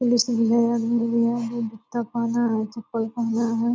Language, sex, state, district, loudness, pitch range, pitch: Hindi, female, Bihar, Purnia, -23 LUFS, 230-235 Hz, 235 Hz